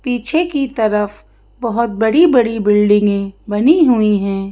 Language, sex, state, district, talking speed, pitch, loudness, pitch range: Hindi, female, Madhya Pradesh, Bhopal, 120 wpm, 220 Hz, -14 LUFS, 205-250 Hz